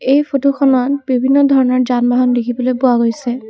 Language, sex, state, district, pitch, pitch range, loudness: Assamese, female, Assam, Kamrup Metropolitan, 255 Hz, 245-275 Hz, -14 LUFS